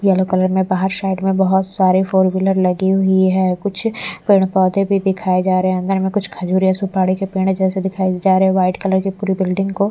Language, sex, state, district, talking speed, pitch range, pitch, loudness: Hindi, female, Bihar, Patna, 240 wpm, 185-195 Hz, 190 Hz, -16 LUFS